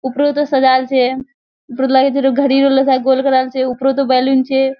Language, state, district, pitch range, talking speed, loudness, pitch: Surjapuri, Bihar, Kishanganj, 260-275 Hz, 165 wpm, -14 LUFS, 265 Hz